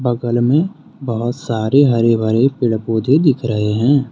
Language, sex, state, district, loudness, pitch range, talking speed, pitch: Hindi, male, Jharkhand, Deoghar, -16 LUFS, 115-140 Hz, 160 wpm, 120 Hz